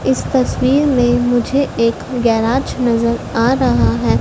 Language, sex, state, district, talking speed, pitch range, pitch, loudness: Hindi, female, Madhya Pradesh, Dhar, 140 wpm, 225-255 Hz, 235 Hz, -15 LUFS